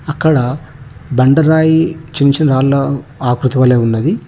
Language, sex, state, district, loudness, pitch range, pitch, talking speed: Telugu, male, Telangana, Hyderabad, -13 LUFS, 130-155 Hz, 140 Hz, 125 wpm